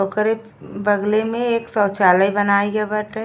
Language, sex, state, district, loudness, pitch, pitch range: Bhojpuri, female, Uttar Pradesh, Ghazipur, -18 LUFS, 210 Hz, 200-220 Hz